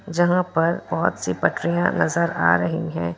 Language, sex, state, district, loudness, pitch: Hindi, female, Bihar, Kishanganj, -21 LUFS, 170 Hz